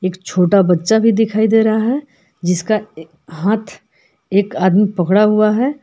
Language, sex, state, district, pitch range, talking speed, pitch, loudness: Hindi, female, Jharkhand, Palamu, 180-220 Hz, 155 wpm, 205 Hz, -15 LUFS